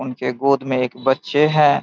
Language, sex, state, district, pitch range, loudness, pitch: Hindi, male, Bihar, Saharsa, 130-145 Hz, -18 LUFS, 135 Hz